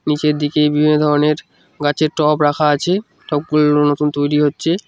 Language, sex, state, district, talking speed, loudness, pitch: Bengali, male, West Bengal, Cooch Behar, 160 wpm, -16 LUFS, 150 Hz